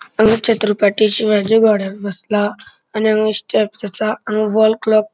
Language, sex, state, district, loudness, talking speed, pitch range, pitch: Konkani, male, Goa, North and South Goa, -16 LUFS, 140 wpm, 210-220 Hz, 215 Hz